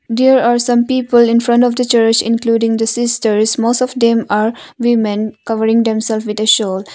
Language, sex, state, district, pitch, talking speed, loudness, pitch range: English, female, Arunachal Pradesh, Longding, 230 Hz, 190 wpm, -13 LUFS, 220-240 Hz